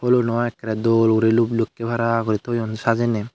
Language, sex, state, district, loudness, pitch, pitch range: Chakma, male, Tripura, Unakoti, -20 LUFS, 115 Hz, 110-120 Hz